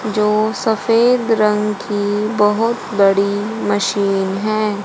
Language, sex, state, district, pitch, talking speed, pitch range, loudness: Hindi, female, Haryana, Charkhi Dadri, 210 Hz, 100 wpm, 205-220 Hz, -16 LUFS